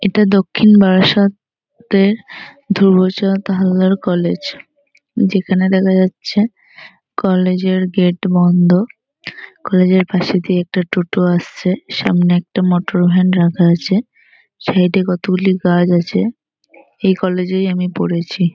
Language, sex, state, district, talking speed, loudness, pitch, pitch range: Bengali, female, West Bengal, North 24 Parganas, 125 wpm, -14 LUFS, 185 Hz, 180-195 Hz